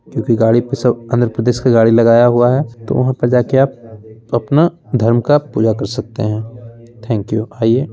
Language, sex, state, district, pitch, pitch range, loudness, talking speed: Hindi, male, Bihar, Begusarai, 120 Hz, 115-130 Hz, -14 LUFS, 195 wpm